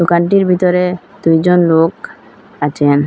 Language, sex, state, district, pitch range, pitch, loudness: Bengali, female, Assam, Hailakandi, 160-180 Hz, 175 Hz, -13 LUFS